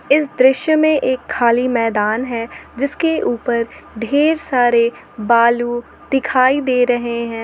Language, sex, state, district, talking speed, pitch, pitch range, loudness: Hindi, female, Jharkhand, Garhwa, 130 wpm, 245 Hz, 235-270 Hz, -16 LUFS